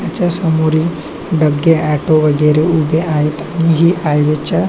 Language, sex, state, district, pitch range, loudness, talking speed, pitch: Marathi, male, Maharashtra, Chandrapur, 150-165 Hz, -13 LUFS, 130 wpm, 160 Hz